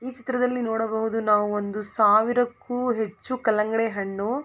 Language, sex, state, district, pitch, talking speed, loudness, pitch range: Kannada, female, Karnataka, Mysore, 225 Hz, 135 wpm, -24 LUFS, 210-245 Hz